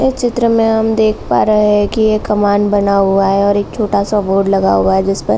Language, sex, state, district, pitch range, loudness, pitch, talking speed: Hindi, female, Uttar Pradesh, Jalaun, 195-220 Hz, -13 LUFS, 205 Hz, 265 wpm